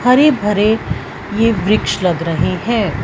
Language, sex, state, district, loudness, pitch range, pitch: Hindi, female, Punjab, Fazilka, -15 LUFS, 185-230 Hz, 215 Hz